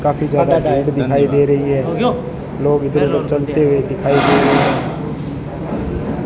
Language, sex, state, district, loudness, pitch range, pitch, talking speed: Hindi, male, Rajasthan, Bikaner, -16 LUFS, 140-145 Hz, 145 Hz, 155 wpm